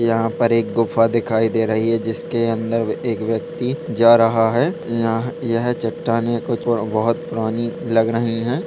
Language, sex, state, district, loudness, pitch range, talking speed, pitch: Hindi, male, Jharkhand, Sahebganj, -19 LUFS, 115-120 Hz, 175 wpm, 115 Hz